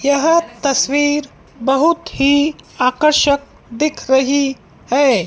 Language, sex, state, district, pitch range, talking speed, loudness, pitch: Hindi, female, Madhya Pradesh, Dhar, 270-295 Hz, 90 wpm, -16 LUFS, 280 Hz